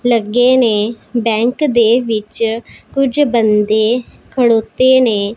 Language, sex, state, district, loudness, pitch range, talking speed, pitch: Punjabi, female, Punjab, Pathankot, -13 LUFS, 220-250 Hz, 100 wpm, 235 Hz